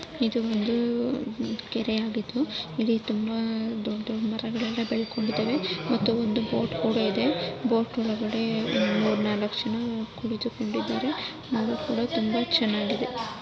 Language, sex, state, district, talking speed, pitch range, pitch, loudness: Kannada, female, Karnataka, Mysore, 110 wpm, 220-235 Hz, 230 Hz, -27 LUFS